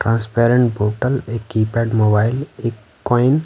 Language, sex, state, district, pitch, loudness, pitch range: Hindi, male, Bihar, Patna, 115 Hz, -18 LUFS, 110-125 Hz